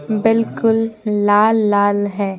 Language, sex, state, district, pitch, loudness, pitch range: Hindi, female, Bihar, Patna, 215 Hz, -16 LUFS, 205-225 Hz